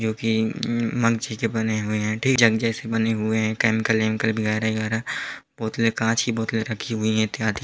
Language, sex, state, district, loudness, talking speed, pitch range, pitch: Hindi, male, Uttar Pradesh, Hamirpur, -23 LUFS, 195 wpm, 110-115 Hz, 110 Hz